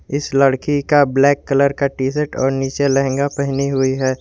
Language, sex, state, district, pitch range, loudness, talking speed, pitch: Hindi, male, Jharkhand, Garhwa, 135-140 Hz, -17 LUFS, 200 wpm, 140 Hz